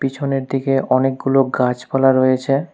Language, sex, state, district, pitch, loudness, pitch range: Bengali, male, West Bengal, Alipurduar, 135 Hz, -17 LUFS, 130-135 Hz